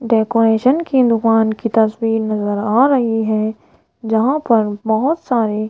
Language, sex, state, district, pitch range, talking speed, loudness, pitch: Hindi, female, Rajasthan, Jaipur, 220-240 Hz, 135 wpm, -16 LUFS, 225 Hz